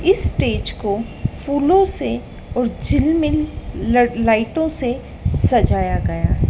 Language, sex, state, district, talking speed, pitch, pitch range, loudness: Hindi, female, Madhya Pradesh, Dhar, 110 wpm, 245 Hz, 215-310 Hz, -19 LUFS